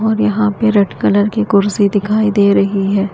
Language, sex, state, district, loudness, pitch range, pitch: Hindi, female, Haryana, Jhajjar, -13 LUFS, 200-215 Hz, 205 Hz